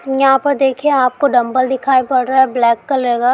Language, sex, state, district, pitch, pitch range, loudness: Hindi, female, Andhra Pradesh, Guntur, 260 Hz, 250-270 Hz, -14 LUFS